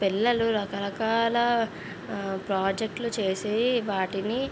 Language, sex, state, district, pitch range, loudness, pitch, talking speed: Telugu, female, Andhra Pradesh, Visakhapatnam, 195-235 Hz, -27 LUFS, 215 Hz, 95 wpm